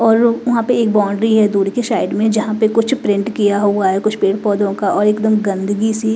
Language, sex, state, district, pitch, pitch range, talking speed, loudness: Hindi, female, Bihar, West Champaran, 215 Hz, 205-225 Hz, 235 wpm, -15 LUFS